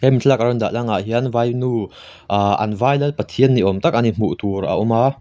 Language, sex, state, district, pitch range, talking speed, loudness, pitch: Mizo, male, Mizoram, Aizawl, 105-125 Hz, 265 wpm, -18 LUFS, 115 Hz